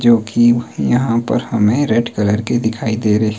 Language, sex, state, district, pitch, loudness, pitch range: Hindi, male, Himachal Pradesh, Shimla, 115 Hz, -15 LUFS, 110-120 Hz